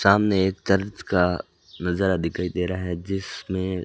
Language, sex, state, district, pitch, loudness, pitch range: Hindi, male, Rajasthan, Bikaner, 95 Hz, -24 LUFS, 90-95 Hz